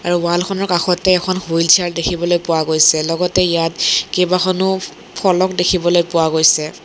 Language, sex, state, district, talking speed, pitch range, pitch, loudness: Assamese, female, Assam, Kamrup Metropolitan, 150 wpm, 165-185 Hz, 175 Hz, -15 LUFS